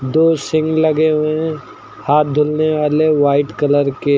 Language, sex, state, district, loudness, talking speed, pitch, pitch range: Hindi, male, Uttar Pradesh, Lucknow, -15 LUFS, 160 wpm, 150 Hz, 145-155 Hz